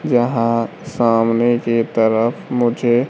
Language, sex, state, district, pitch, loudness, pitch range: Hindi, male, Bihar, Kaimur, 120 Hz, -17 LUFS, 115-120 Hz